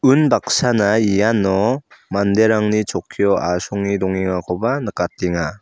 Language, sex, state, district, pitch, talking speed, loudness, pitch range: Garo, male, Meghalaya, South Garo Hills, 100 Hz, 75 wpm, -18 LUFS, 95-110 Hz